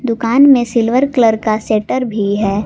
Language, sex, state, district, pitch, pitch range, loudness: Hindi, female, Jharkhand, Garhwa, 230 Hz, 215-250 Hz, -13 LUFS